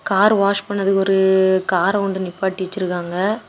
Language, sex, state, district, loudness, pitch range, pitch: Tamil, female, Tamil Nadu, Kanyakumari, -18 LUFS, 190-200 Hz, 195 Hz